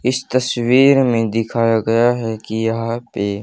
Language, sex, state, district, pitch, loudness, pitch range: Hindi, male, Haryana, Charkhi Dadri, 115 Hz, -17 LUFS, 115-125 Hz